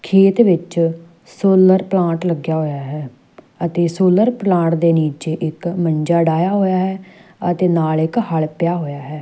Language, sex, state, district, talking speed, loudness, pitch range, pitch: Punjabi, female, Punjab, Fazilka, 150 wpm, -17 LUFS, 160-185 Hz, 170 Hz